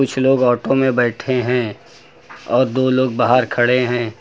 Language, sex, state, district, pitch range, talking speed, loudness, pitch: Hindi, male, Uttar Pradesh, Lucknow, 120-130 Hz, 170 wpm, -17 LUFS, 125 Hz